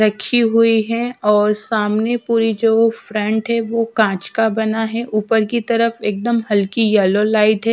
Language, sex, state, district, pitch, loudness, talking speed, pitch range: Hindi, female, Chhattisgarh, Raipur, 225 Hz, -16 LUFS, 170 wpm, 215-230 Hz